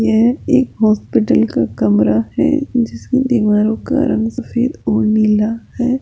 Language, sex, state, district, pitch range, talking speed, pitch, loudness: Hindi, female, Rajasthan, Jaipur, 215-255 Hz, 140 wpm, 225 Hz, -15 LUFS